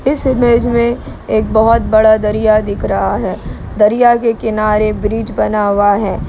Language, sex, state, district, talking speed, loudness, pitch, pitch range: Hindi, male, Bihar, Kishanganj, 160 wpm, -13 LUFS, 220 Hz, 210-235 Hz